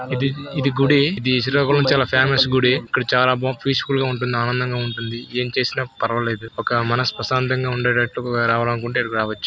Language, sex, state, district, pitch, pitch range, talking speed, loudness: Telugu, male, Andhra Pradesh, Srikakulam, 125 Hz, 120-130 Hz, 150 wpm, -19 LUFS